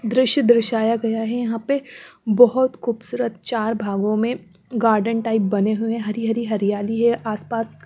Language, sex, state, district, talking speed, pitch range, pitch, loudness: Hindi, female, Bihar, West Champaran, 170 wpm, 215-240 Hz, 225 Hz, -20 LUFS